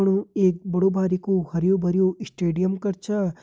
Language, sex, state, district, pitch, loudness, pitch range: Hindi, male, Uttarakhand, Uttarkashi, 190 Hz, -23 LUFS, 180-195 Hz